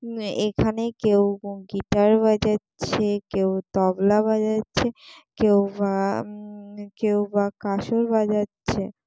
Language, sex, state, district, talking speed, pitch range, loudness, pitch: Bengali, female, West Bengal, Jalpaiguri, 100 wpm, 200-215 Hz, -23 LUFS, 205 Hz